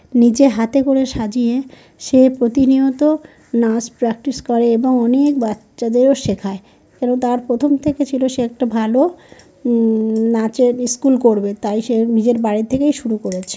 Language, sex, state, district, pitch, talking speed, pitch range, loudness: Bengali, male, West Bengal, North 24 Parganas, 245 Hz, 140 wpm, 225-265 Hz, -16 LUFS